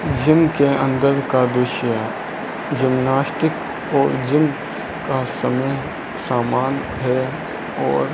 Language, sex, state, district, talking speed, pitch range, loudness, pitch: Hindi, male, Rajasthan, Bikaner, 110 wpm, 130-140 Hz, -19 LUFS, 135 Hz